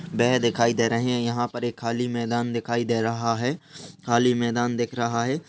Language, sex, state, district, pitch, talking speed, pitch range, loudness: Hindi, male, Rajasthan, Churu, 120 Hz, 205 wpm, 115-125 Hz, -24 LUFS